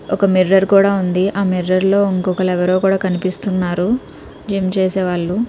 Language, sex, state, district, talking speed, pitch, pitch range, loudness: Telugu, female, Andhra Pradesh, Krishna, 140 wpm, 190 Hz, 185-195 Hz, -16 LUFS